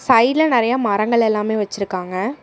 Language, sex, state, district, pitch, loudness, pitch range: Tamil, female, Tamil Nadu, Namakkal, 220 Hz, -18 LUFS, 205-245 Hz